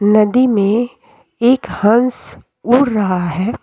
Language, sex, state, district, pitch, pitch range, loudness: Hindi, female, Uttar Pradesh, Jyotiba Phule Nagar, 225 Hz, 205-245 Hz, -14 LUFS